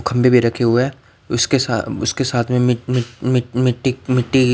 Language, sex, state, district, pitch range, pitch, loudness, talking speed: Hindi, male, Bihar, Patna, 120-130 Hz, 125 Hz, -17 LUFS, 210 wpm